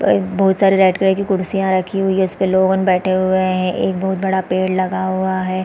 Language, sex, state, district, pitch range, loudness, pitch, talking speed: Hindi, female, Chhattisgarh, Raigarh, 185-190 Hz, -16 LUFS, 190 Hz, 235 wpm